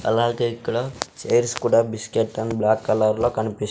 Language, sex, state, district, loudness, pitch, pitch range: Telugu, male, Andhra Pradesh, Sri Satya Sai, -22 LUFS, 115 Hz, 110-120 Hz